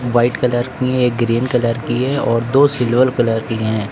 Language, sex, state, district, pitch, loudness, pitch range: Hindi, female, Uttar Pradesh, Lucknow, 120 Hz, -16 LUFS, 115-125 Hz